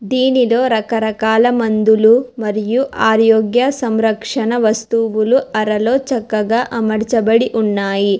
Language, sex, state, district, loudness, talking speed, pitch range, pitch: Telugu, female, Telangana, Hyderabad, -15 LUFS, 80 wpm, 220-245 Hz, 225 Hz